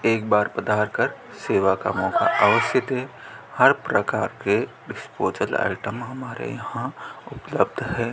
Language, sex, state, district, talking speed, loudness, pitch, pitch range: Hindi, male, Rajasthan, Bikaner, 135 wpm, -23 LUFS, 105 Hz, 100-120 Hz